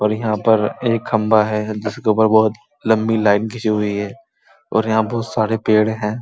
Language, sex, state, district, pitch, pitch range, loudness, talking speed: Hindi, male, Uttar Pradesh, Muzaffarnagar, 110 Hz, 105-115 Hz, -18 LUFS, 195 wpm